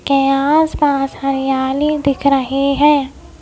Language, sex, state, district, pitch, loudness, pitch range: Hindi, female, Madhya Pradesh, Bhopal, 275 Hz, -15 LUFS, 275-290 Hz